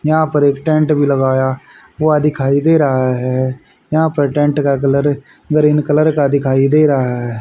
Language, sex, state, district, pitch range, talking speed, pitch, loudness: Hindi, male, Haryana, Charkhi Dadri, 135-150 Hz, 185 wpm, 145 Hz, -14 LUFS